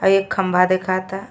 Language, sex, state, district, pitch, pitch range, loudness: Bhojpuri, female, Uttar Pradesh, Ghazipur, 190 Hz, 185-195 Hz, -19 LUFS